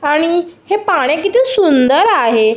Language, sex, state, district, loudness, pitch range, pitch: Marathi, female, Maharashtra, Aurangabad, -12 LUFS, 270-390 Hz, 310 Hz